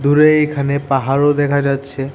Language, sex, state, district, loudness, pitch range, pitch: Bengali, male, Tripura, West Tripura, -15 LUFS, 140-145 Hz, 140 Hz